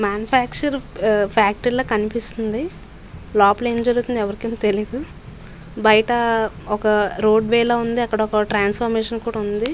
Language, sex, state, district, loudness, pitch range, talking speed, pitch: Telugu, female, Andhra Pradesh, Visakhapatnam, -19 LUFS, 210-235 Hz, 110 wpm, 220 Hz